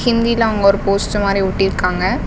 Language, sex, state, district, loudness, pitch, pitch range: Tamil, female, Tamil Nadu, Namakkal, -16 LUFS, 200 Hz, 195-225 Hz